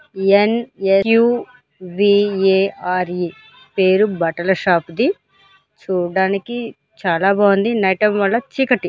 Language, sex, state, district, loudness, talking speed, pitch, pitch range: Telugu, female, Andhra Pradesh, Krishna, -17 LUFS, 90 wpm, 195 Hz, 185-225 Hz